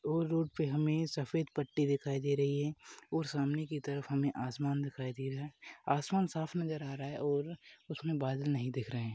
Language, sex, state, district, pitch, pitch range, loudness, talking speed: Hindi, male, Rajasthan, Churu, 145 Hz, 140-155 Hz, -36 LUFS, 210 wpm